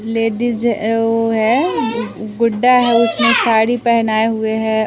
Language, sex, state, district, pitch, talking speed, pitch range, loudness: Hindi, female, Bihar, West Champaran, 225 Hz, 150 wpm, 220-235 Hz, -15 LUFS